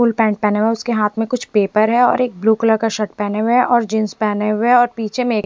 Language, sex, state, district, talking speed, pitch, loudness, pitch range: Hindi, female, Punjab, Fazilka, 330 wpm, 220 Hz, -16 LUFS, 210-240 Hz